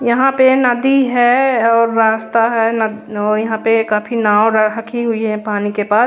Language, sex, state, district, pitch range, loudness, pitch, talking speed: Hindi, female, Odisha, Khordha, 215-240 Hz, -14 LUFS, 225 Hz, 200 wpm